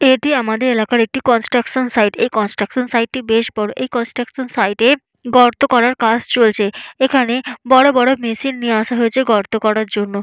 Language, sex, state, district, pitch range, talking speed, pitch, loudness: Bengali, female, West Bengal, Jalpaiguri, 220-255 Hz, 170 wpm, 240 Hz, -15 LUFS